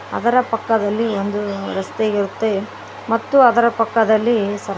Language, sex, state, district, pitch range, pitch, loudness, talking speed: Kannada, female, Karnataka, Koppal, 205-230 Hz, 220 Hz, -18 LUFS, 125 wpm